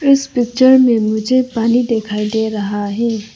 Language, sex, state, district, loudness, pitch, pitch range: Hindi, female, Arunachal Pradesh, Lower Dibang Valley, -14 LUFS, 230 Hz, 215-255 Hz